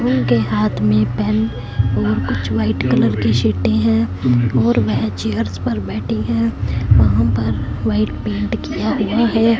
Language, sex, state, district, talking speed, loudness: Hindi, female, Punjab, Fazilka, 150 wpm, -17 LUFS